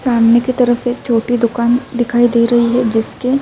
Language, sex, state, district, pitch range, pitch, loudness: Urdu, female, Uttar Pradesh, Budaun, 235-245 Hz, 240 Hz, -14 LUFS